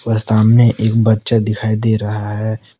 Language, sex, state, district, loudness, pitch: Hindi, male, Jharkhand, Palamu, -15 LUFS, 110 Hz